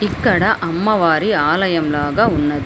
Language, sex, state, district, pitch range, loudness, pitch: Telugu, female, Telangana, Hyderabad, 150-210 Hz, -16 LUFS, 170 Hz